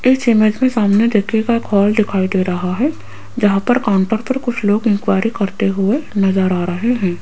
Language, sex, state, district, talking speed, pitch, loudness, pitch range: Hindi, female, Rajasthan, Jaipur, 200 wpm, 210 Hz, -16 LUFS, 195-235 Hz